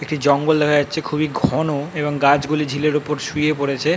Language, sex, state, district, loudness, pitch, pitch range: Bengali, male, West Bengal, North 24 Parganas, -19 LUFS, 150 Hz, 145-155 Hz